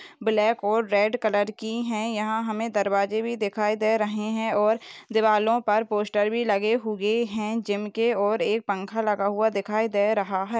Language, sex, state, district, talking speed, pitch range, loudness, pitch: Hindi, female, Rajasthan, Nagaur, 180 wpm, 210-225 Hz, -25 LUFS, 215 Hz